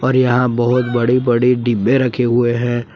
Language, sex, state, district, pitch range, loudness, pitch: Hindi, male, Jharkhand, Palamu, 120-125 Hz, -15 LUFS, 120 Hz